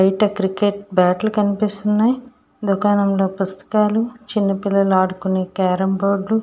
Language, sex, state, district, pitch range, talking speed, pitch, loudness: Telugu, female, Andhra Pradesh, Srikakulam, 190-210 Hz, 110 wpm, 200 Hz, -19 LUFS